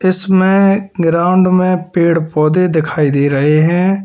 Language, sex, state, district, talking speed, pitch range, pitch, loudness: Hindi, male, Uttar Pradesh, Lalitpur, 135 wpm, 160-185 Hz, 180 Hz, -12 LUFS